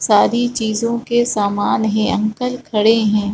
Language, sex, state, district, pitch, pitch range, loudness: Hindi, female, Chhattisgarh, Balrampur, 220 Hz, 210-235 Hz, -17 LUFS